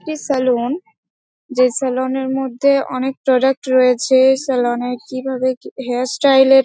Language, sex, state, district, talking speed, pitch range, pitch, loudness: Bengali, female, West Bengal, Dakshin Dinajpur, 155 wpm, 255-270 Hz, 260 Hz, -17 LUFS